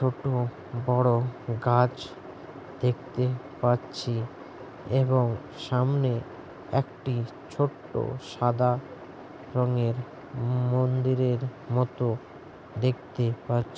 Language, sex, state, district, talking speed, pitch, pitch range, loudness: Bengali, male, West Bengal, Jalpaiguri, 65 wpm, 125 Hz, 120-130 Hz, -28 LUFS